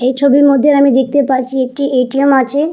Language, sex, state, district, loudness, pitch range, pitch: Bengali, female, West Bengal, Purulia, -11 LUFS, 260-280 Hz, 275 Hz